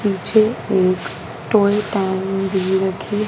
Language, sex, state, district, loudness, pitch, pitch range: Hindi, female, Punjab, Fazilka, -18 LUFS, 195 Hz, 190-210 Hz